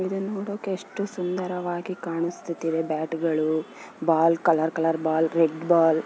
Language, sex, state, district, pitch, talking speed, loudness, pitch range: Kannada, female, Karnataka, Bellary, 165 Hz, 140 wpm, -25 LUFS, 160-185 Hz